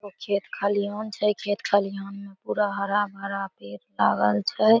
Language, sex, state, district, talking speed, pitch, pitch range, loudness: Maithili, female, Bihar, Samastipur, 165 wpm, 200 Hz, 195-205 Hz, -25 LUFS